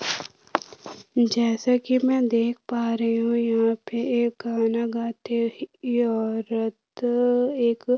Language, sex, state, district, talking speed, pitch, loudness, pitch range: Hindi, female, Uttarakhand, Tehri Garhwal, 130 wpm, 235 Hz, -24 LUFS, 230-245 Hz